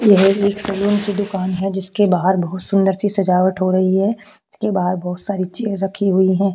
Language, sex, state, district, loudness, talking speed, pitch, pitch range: Hindi, female, Chhattisgarh, Korba, -18 LUFS, 210 wpm, 195 Hz, 185-200 Hz